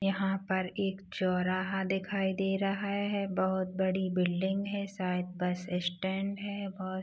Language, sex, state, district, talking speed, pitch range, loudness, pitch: Hindi, female, Chhattisgarh, Rajnandgaon, 145 wpm, 185-195 Hz, -33 LUFS, 190 Hz